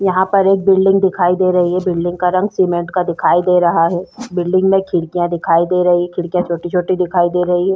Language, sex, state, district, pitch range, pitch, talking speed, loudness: Hindi, female, Uttarakhand, Tehri Garhwal, 175-185 Hz, 180 Hz, 230 wpm, -15 LUFS